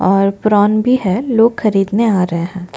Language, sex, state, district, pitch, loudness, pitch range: Hindi, female, Chhattisgarh, Bastar, 205 Hz, -14 LUFS, 185-225 Hz